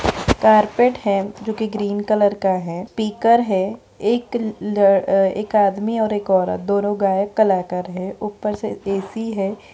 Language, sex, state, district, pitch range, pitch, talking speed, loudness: Hindi, female, Bihar, Begusarai, 195-220 Hz, 205 Hz, 155 wpm, -19 LUFS